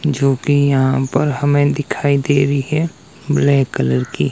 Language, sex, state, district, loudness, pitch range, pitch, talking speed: Hindi, male, Himachal Pradesh, Shimla, -16 LUFS, 135-145 Hz, 140 Hz, 180 wpm